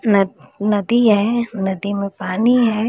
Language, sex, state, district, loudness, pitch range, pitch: Hindi, female, Maharashtra, Mumbai Suburban, -18 LUFS, 200-230 Hz, 205 Hz